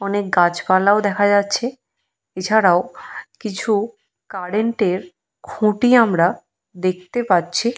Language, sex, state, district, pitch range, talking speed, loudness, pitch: Bengali, female, Jharkhand, Jamtara, 185-220 Hz, 90 wpm, -18 LUFS, 205 Hz